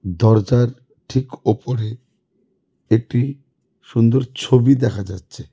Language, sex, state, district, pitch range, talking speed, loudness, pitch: Bengali, male, West Bengal, Cooch Behar, 110-130 Hz, 85 wpm, -18 LUFS, 120 Hz